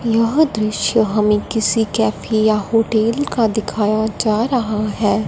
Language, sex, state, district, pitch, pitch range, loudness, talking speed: Hindi, female, Punjab, Fazilka, 220 Hz, 215-225 Hz, -17 LUFS, 135 wpm